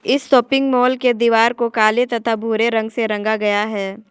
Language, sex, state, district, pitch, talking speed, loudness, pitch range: Hindi, female, Jharkhand, Ranchi, 230 Hz, 205 wpm, -17 LUFS, 220-245 Hz